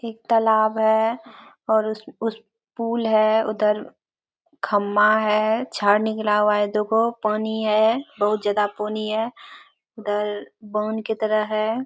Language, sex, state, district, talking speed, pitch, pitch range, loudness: Hindi, female, Bihar, Bhagalpur, 125 wpm, 220 Hz, 210-225 Hz, -21 LUFS